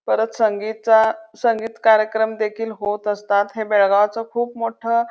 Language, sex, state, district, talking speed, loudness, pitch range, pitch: Marathi, female, Karnataka, Belgaum, 130 wpm, -19 LUFS, 210-225 Hz, 220 Hz